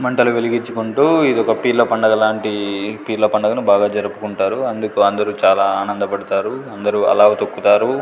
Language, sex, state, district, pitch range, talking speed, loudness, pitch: Telugu, male, Andhra Pradesh, Sri Satya Sai, 100-115 Hz, 135 wpm, -16 LUFS, 105 Hz